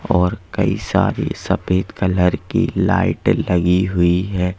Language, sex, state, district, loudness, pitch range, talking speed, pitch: Hindi, male, Madhya Pradesh, Bhopal, -18 LUFS, 90-95 Hz, 130 wpm, 90 Hz